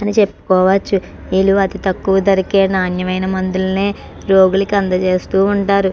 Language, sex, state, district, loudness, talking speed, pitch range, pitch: Telugu, female, Andhra Pradesh, Chittoor, -15 LUFS, 110 wpm, 185-195 Hz, 195 Hz